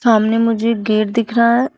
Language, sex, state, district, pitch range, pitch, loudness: Hindi, female, Uttar Pradesh, Shamli, 220-235 Hz, 230 Hz, -15 LUFS